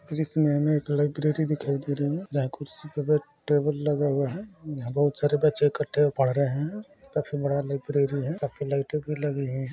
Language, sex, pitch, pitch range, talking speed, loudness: Maithili, female, 145 Hz, 140-150 Hz, 205 wpm, -27 LUFS